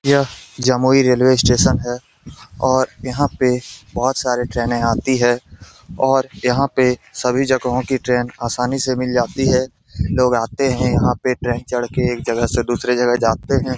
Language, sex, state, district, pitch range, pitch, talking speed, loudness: Hindi, male, Bihar, Jamui, 120-130 Hz, 125 Hz, 175 wpm, -18 LUFS